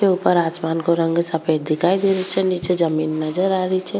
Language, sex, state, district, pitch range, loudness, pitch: Rajasthani, female, Rajasthan, Churu, 160-185 Hz, -19 LUFS, 170 Hz